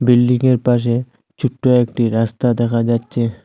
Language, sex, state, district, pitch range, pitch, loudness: Bengali, male, Assam, Hailakandi, 115-125 Hz, 120 Hz, -16 LUFS